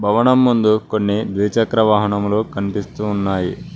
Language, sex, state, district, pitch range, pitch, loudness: Telugu, male, Telangana, Mahabubabad, 100-110 Hz, 105 Hz, -17 LUFS